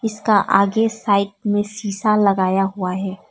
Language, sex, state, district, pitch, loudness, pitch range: Hindi, female, Arunachal Pradesh, Papum Pare, 205 Hz, -18 LUFS, 195-215 Hz